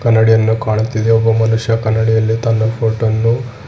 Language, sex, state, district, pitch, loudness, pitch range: Kannada, male, Karnataka, Bidar, 110 Hz, -14 LUFS, 110-115 Hz